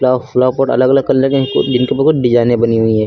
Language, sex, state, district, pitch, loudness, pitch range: Hindi, male, Uttar Pradesh, Lucknow, 130 Hz, -13 LUFS, 120-135 Hz